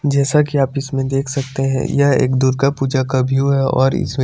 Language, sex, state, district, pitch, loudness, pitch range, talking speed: Hindi, male, Chandigarh, Chandigarh, 135 Hz, -16 LUFS, 130-140 Hz, 225 wpm